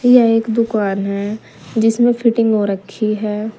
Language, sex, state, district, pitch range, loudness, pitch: Hindi, female, Uttar Pradesh, Saharanpur, 205-230 Hz, -16 LUFS, 220 Hz